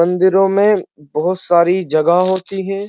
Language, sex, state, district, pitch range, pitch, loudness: Hindi, male, Uttar Pradesh, Muzaffarnagar, 170-195 Hz, 185 Hz, -14 LUFS